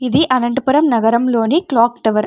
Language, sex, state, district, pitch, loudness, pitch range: Telugu, female, Andhra Pradesh, Anantapur, 245 Hz, -14 LUFS, 230-270 Hz